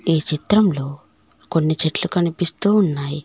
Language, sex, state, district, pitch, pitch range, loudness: Telugu, female, Telangana, Mahabubabad, 165 Hz, 150-180 Hz, -18 LUFS